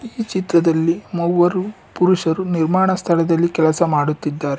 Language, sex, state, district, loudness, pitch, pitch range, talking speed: Kannada, male, Karnataka, Bangalore, -17 LUFS, 170 Hz, 160-185 Hz, 90 wpm